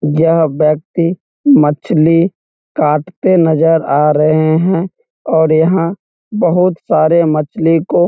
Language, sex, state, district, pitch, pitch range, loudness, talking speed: Hindi, male, Bihar, Muzaffarpur, 165 Hz, 155-175 Hz, -12 LUFS, 110 wpm